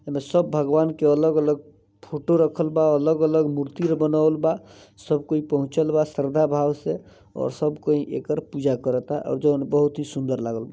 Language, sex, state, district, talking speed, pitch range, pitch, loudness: Bhojpuri, male, Bihar, East Champaran, 175 wpm, 145-155 Hz, 150 Hz, -23 LUFS